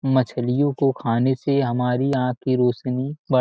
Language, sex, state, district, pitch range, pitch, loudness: Hindi, male, Bihar, Gopalganj, 125-135 Hz, 130 Hz, -21 LUFS